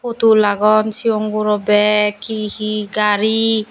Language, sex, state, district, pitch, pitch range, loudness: Chakma, female, Tripura, Dhalai, 215 Hz, 210-220 Hz, -15 LUFS